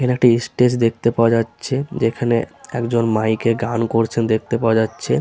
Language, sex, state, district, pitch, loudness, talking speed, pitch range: Bengali, male, West Bengal, Paschim Medinipur, 115 Hz, -18 LUFS, 185 wpm, 115-120 Hz